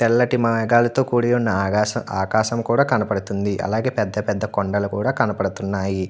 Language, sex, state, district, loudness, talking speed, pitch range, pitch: Telugu, male, Andhra Pradesh, Anantapur, -20 LUFS, 140 wpm, 100-120 Hz, 110 Hz